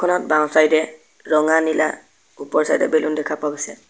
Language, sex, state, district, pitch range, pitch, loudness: Assamese, male, Assam, Sonitpur, 155-160 Hz, 155 Hz, -19 LUFS